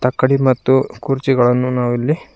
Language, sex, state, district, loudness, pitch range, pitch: Kannada, male, Karnataka, Koppal, -16 LUFS, 125-135 Hz, 130 Hz